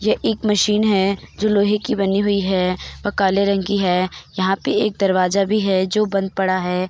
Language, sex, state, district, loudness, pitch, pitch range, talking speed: Hindi, female, Uttar Pradesh, Jyotiba Phule Nagar, -19 LUFS, 195 Hz, 190-205 Hz, 225 wpm